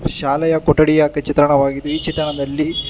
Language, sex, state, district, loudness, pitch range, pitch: Kannada, male, Karnataka, Bangalore, -16 LUFS, 145-155 Hz, 150 Hz